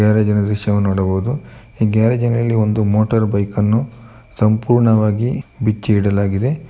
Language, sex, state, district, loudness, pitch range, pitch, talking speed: Kannada, male, Karnataka, Mysore, -16 LUFS, 105-115 Hz, 110 Hz, 100 wpm